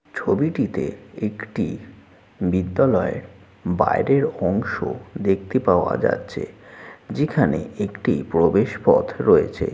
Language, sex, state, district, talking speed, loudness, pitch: Bengali, male, West Bengal, Jalpaiguri, 80 wpm, -21 LUFS, 110 Hz